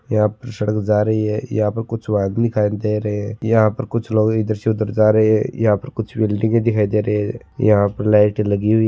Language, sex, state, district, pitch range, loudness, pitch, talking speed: Marwari, male, Rajasthan, Churu, 105-110 Hz, -18 LUFS, 110 Hz, 250 wpm